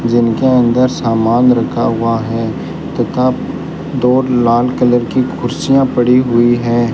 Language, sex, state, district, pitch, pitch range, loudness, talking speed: Hindi, male, Rajasthan, Bikaner, 120 Hz, 115-125 Hz, -13 LUFS, 130 wpm